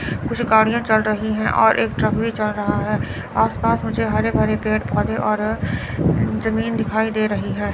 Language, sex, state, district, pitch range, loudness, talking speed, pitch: Hindi, female, Chandigarh, Chandigarh, 160-220 Hz, -19 LUFS, 185 wpm, 215 Hz